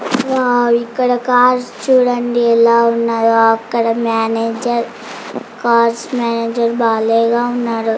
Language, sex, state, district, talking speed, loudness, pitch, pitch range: Telugu, female, Andhra Pradesh, Chittoor, 70 wpm, -14 LUFS, 235 Hz, 230-245 Hz